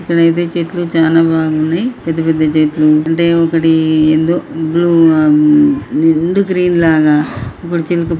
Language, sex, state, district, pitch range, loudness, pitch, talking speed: Telugu, male, Karnataka, Dharwad, 160-170 Hz, -12 LUFS, 165 Hz, 130 wpm